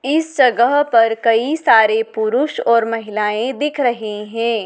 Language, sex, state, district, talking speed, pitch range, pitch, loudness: Hindi, female, Madhya Pradesh, Dhar, 140 wpm, 225-290 Hz, 235 Hz, -16 LUFS